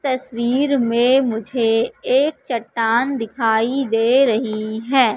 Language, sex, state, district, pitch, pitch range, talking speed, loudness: Hindi, female, Madhya Pradesh, Katni, 235 Hz, 225-265 Hz, 105 wpm, -18 LUFS